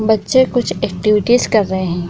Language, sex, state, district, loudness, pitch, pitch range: Hindi, female, Bihar, Madhepura, -15 LUFS, 215 Hz, 190-245 Hz